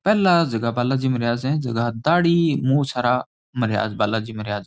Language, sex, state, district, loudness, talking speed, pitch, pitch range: Rajasthani, male, Rajasthan, Churu, -21 LUFS, 155 wpm, 125 Hz, 115-150 Hz